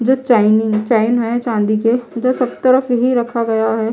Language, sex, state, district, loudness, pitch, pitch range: Hindi, female, Chhattisgarh, Raipur, -15 LUFS, 235 Hz, 220-250 Hz